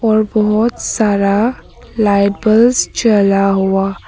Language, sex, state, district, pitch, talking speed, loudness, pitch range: Hindi, female, Arunachal Pradesh, Papum Pare, 210 Hz, 105 wpm, -13 LUFS, 200-225 Hz